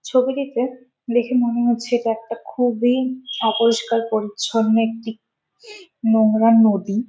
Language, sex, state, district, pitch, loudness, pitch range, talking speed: Bengali, female, West Bengal, Malda, 230 Hz, -19 LUFS, 225-250 Hz, 110 wpm